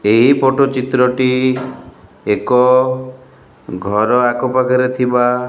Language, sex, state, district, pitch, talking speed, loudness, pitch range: Odia, male, Odisha, Malkangiri, 130 Hz, 85 wpm, -14 LUFS, 125-130 Hz